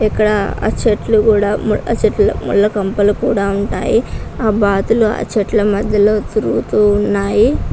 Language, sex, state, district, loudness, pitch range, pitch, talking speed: Telugu, female, Andhra Pradesh, Guntur, -14 LUFS, 205-215 Hz, 210 Hz, 100 wpm